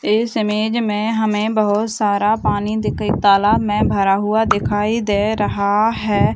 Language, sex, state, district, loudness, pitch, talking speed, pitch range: Hindi, female, Bihar, Madhepura, -17 LUFS, 210 Hz, 160 wpm, 205-220 Hz